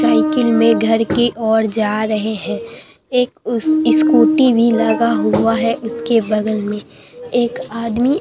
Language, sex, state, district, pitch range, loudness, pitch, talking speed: Hindi, male, Bihar, Katihar, 210-250 Hz, -16 LUFS, 230 Hz, 145 wpm